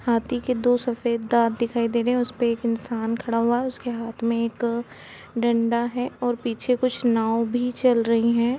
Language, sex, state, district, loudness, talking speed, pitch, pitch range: Hindi, female, Uttar Pradesh, Etah, -23 LUFS, 210 wpm, 235 Hz, 230-245 Hz